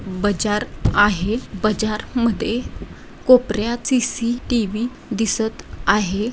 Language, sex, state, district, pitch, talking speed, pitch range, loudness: Marathi, female, Maharashtra, Dhule, 220 Hz, 75 wpm, 210-240 Hz, -20 LUFS